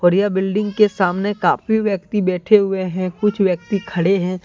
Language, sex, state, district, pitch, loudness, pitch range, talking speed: Hindi, male, Jharkhand, Deoghar, 195 Hz, -18 LUFS, 185-205 Hz, 190 wpm